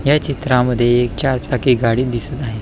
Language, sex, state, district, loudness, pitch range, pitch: Marathi, male, Maharashtra, Pune, -16 LUFS, 120-135 Hz, 125 Hz